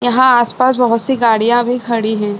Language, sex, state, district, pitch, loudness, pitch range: Hindi, female, Bihar, Sitamarhi, 240 Hz, -13 LUFS, 230-250 Hz